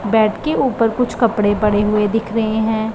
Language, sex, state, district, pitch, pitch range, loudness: Hindi, female, Punjab, Pathankot, 220 Hz, 210-230 Hz, -17 LUFS